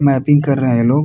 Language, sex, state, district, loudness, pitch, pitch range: Hindi, male, Bihar, Kishanganj, -14 LUFS, 140 Hz, 130-145 Hz